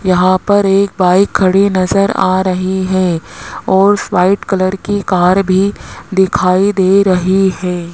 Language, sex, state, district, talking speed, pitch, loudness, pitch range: Hindi, male, Rajasthan, Jaipur, 145 wpm, 190 Hz, -12 LUFS, 185-195 Hz